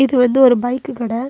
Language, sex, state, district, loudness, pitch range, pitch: Tamil, female, Tamil Nadu, Kanyakumari, -15 LUFS, 245-270 Hz, 250 Hz